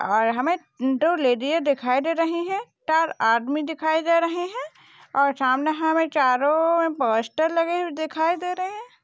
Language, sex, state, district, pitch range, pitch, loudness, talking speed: Hindi, female, Maharashtra, Dhule, 270-335 Hz, 320 Hz, -22 LUFS, 165 wpm